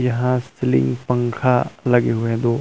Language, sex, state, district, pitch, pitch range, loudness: Hindi, male, Chhattisgarh, Rajnandgaon, 120 Hz, 115-125 Hz, -19 LUFS